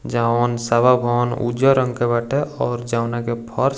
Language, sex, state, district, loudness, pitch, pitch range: Bhojpuri, male, Bihar, East Champaran, -19 LUFS, 120 Hz, 120-125 Hz